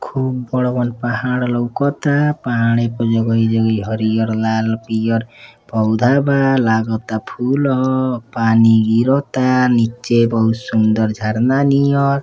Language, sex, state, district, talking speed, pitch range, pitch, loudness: Bhojpuri, male, Uttar Pradesh, Deoria, 115 wpm, 110-130 Hz, 120 Hz, -16 LUFS